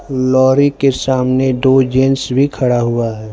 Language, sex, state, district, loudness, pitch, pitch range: Hindi, male, Gujarat, Valsad, -13 LUFS, 130 Hz, 125-135 Hz